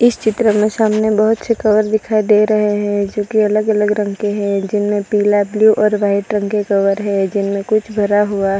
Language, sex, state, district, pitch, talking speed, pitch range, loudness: Hindi, female, Gujarat, Valsad, 210 Hz, 225 wpm, 205-215 Hz, -15 LUFS